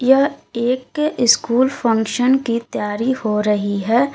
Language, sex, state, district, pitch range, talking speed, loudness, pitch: Hindi, female, Uttar Pradesh, Lalitpur, 220-260 Hz, 130 wpm, -18 LUFS, 240 Hz